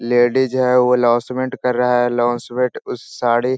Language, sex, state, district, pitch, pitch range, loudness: Hindi, male, Bihar, Jahanabad, 125 Hz, 120-125 Hz, -17 LUFS